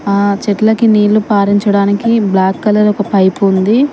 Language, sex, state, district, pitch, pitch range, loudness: Telugu, female, Telangana, Mahabubabad, 205 Hz, 200-215 Hz, -11 LUFS